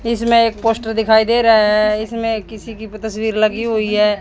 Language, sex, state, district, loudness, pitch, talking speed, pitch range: Hindi, female, Haryana, Jhajjar, -15 LUFS, 220 Hz, 200 wpm, 215-225 Hz